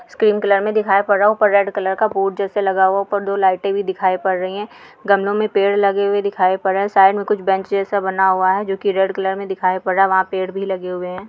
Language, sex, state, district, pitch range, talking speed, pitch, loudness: Hindi, female, Uttar Pradesh, Muzaffarnagar, 190-200 Hz, 275 wpm, 195 Hz, -17 LUFS